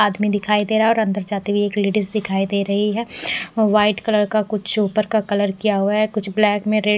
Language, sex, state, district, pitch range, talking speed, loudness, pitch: Hindi, female, Bihar, West Champaran, 205-215 Hz, 260 wpm, -19 LUFS, 210 Hz